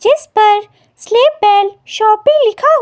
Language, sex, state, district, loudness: Hindi, female, Himachal Pradesh, Shimla, -11 LUFS